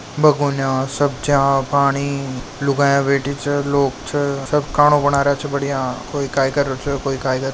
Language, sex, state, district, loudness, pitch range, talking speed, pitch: Marwari, male, Rajasthan, Nagaur, -18 LUFS, 135-145 Hz, 185 wpm, 140 Hz